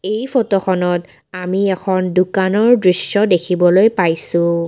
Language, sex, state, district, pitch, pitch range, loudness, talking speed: Assamese, female, Assam, Kamrup Metropolitan, 185 Hz, 180-200 Hz, -15 LUFS, 100 wpm